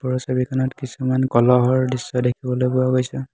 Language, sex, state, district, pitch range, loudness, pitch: Assamese, male, Assam, Hailakandi, 125-130 Hz, -20 LUFS, 130 Hz